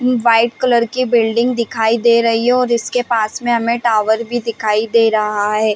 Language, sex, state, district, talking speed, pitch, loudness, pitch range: Hindi, female, Chhattisgarh, Bilaspur, 200 wpm, 230 Hz, -15 LUFS, 220-240 Hz